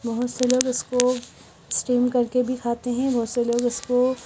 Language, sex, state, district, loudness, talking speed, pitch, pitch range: Hindi, female, Himachal Pradesh, Shimla, -23 LUFS, 185 wpm, 245 Hz, 240-250 Hz